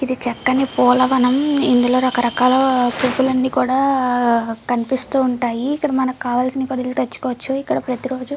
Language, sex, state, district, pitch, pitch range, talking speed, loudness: Telugu, female, Andhra Pradesh, Srikakulam, 255 Hz, 245-265 Hz, 120 wpm, -18 LUFS